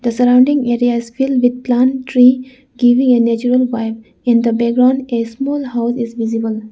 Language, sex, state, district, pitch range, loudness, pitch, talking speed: English, female, Arunachal Pradesh, Lower Dibang Valley, 235-255 Hz, -14 LUFS, 245 Hz, 170 wpm